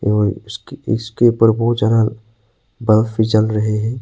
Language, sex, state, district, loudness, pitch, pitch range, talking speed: Hindi, male, Arunachal Pradesh, Papum Pare, -16 LUFS, 110 Hz, 110-115 Hz, 165 wpm